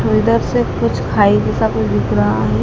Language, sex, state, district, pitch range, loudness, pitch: Hindi, male, Madhya Pradesh, Dhar, 110-115 Hz, -15 LUFS, 110 Hz